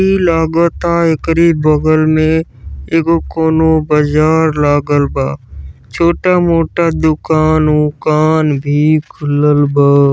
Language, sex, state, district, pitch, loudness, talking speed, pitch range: Bhojpuri, female, Uttar Pradesh, Deoria, 155 Hz, -12 LUFS, 100 wpm, 145-165 Hz